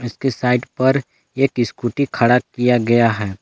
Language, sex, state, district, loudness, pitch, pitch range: Hindi, male, Jharkhand, Palamu, -18 LUFS, 120 Hz, 115-130 Hz